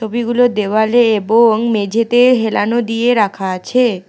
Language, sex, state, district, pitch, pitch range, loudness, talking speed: Bengali, female, West Bengal, Alipurduar, 225 Hz, 210-240 Hz, -13 LUFS, 115 wpm